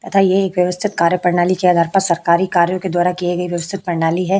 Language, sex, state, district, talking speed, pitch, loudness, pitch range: Hindi, female, Uttar Pradesh, Hamirpur, 205 wpm, 180 Hz, -16 LUFS, 175-190 Hz